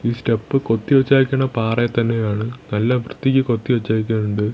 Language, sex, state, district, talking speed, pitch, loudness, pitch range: Malayalam, male, Kerala, Thiruvananthapuram, 120 wpm, 115 Hz, -19 LUFS, 110-130 Hz